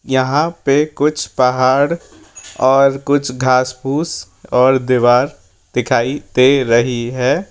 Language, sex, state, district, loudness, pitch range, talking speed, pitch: Hindi, male, Rajasthan, Jaipur, -15 LUFS, 125-145 Hz, 110 wpm, 130 Hz